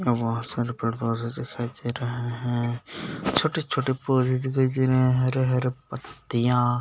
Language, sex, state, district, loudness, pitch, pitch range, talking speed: Hindi, male, Chhattisgarh, Bastar, -25 LUFS, 125 Hz, 120-130 Hz, 175 wpm